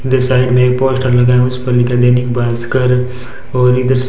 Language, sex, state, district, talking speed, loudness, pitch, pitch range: Hindi, male, Rajasthan, Bikaner, 220 wpm, -12 LUFS, 125 Hz, 125-130 Hz